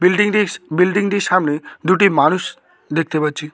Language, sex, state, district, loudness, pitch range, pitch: Bengali, male, West Bengal, Cooch Behar, -17 LUFS, 155-200 Hz, 180 Hz